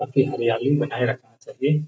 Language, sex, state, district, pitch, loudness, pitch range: Hindi, male, Bihar, Gaya, 135 Hz, -23 LUFS, 120-145 Hz